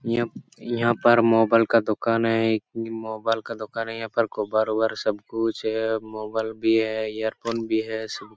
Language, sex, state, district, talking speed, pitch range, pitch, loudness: Hindi, male, Jharkhand, Sahebganj, 200 wpm, 110-115 Hz, 110 Hz, -24 LUFS